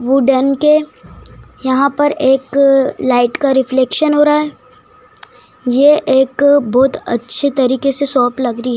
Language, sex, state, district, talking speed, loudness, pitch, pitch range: Hindi, male, Madhya Pradesh, Dhar, 145 wpm, -13 LUFS, 270 Hz, 255-285 Hz